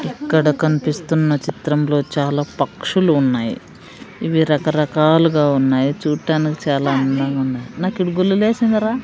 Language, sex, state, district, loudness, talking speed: Telugu, female, Andhra Pradesh, Sri Satya Sai, -17 LUFS, 120 wpm